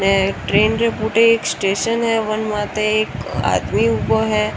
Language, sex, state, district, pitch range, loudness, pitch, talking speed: Marwari, female, Rajasthan, Churu, 195-225 Hz, -17 LUFS, 215 Hz, 155 wpm